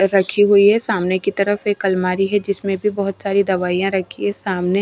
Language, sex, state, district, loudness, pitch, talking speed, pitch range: Hindi, female, Himachal Pradesh, Shimla, -18 LUFS, 195 Hz, 225 wpm, 190-205 Hz